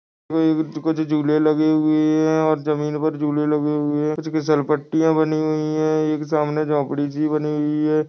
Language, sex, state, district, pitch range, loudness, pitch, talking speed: Hindi, male, Goa, North and South Goa, 150-155 Hz, -20 LUFS, 155 Hz, 185 wpm